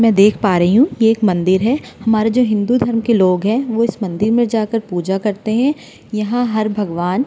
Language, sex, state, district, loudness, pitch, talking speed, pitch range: Hindi, female, Uttar Pradesh, Jyotiba Phule Nagar, -16 LUFS, 220 Hz, 230 wpm, 200-235 Hz